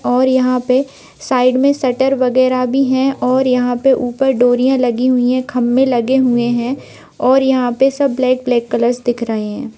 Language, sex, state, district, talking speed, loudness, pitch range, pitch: Hindi, female, Bihar, Bhagalpur, 190 wpm, -14 LUFS, 245-265 Hz, 255 Hz